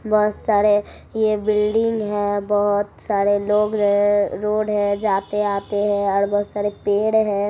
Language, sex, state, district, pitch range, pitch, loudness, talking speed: Hindi, female, Bihar, Supaul, 205-210 Hz, 205 Hz, -20 LUFS, 145 wpm